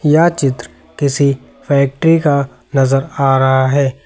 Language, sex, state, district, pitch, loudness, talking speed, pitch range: Hindi, male, Uttar Pradesh, Lucknow, 140 Hz, -14 LUFS, 135 wpm, 135-145 Hz